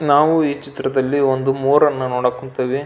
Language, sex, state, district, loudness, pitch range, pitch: Kannada, male, Karnataka, Belgaum, -17 LUFS, 130-145 Hz, 135 Hz